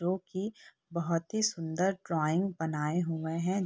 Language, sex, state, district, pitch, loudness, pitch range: Hindi, female, Bihar, Purnia, 175 Hz, -32 LUFS, 160-190 Hz